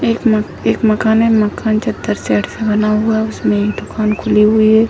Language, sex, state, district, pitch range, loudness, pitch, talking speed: Hindi, female, Bihar, Sitamarhi, 210-220 Hz, -14 LUFS, 215 Hz, 220 wpm